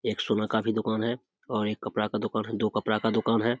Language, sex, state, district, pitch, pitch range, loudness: Hindi, male, Bihar, Samastipur, 110 Hz, 105-110 Hz, -28 LUFS